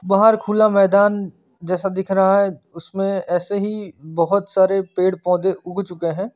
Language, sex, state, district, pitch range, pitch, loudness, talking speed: Hindi, male, Chandigarh, Chandigarh, 180-200 Hz, 195 Hz, -18 LUFS, 160 wpm